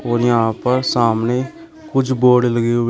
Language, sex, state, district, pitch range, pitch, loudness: Hindi, male, Uttar Pradesh, Shamli, 120-130 Hz, 120 Hz, -16 LUFS